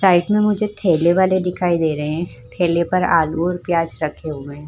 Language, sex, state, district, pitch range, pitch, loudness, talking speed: Hindi, female, Uttar Pradesh, Varanasi, 155-185 Hz, 170 Hz, -18 LUFS, 215 wpm